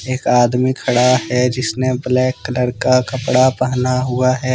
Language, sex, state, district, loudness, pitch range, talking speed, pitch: Hindi, male, Jharkhand, Deoghar, -16 LUFS, 125-130 Hz, 160 wpm, 125 Hz